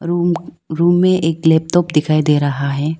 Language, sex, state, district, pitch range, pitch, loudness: Hindi, female, Arunachal Pradesh, Lower Dibang Valley, 150-175 Hz, 160 Hz, -15 LUFS